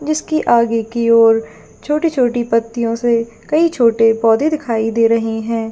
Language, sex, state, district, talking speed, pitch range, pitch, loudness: Hindi, female, Jharkhand, Jamtara, 155 wpm, 225-245 Hz, 230 Hz, -15 LUFS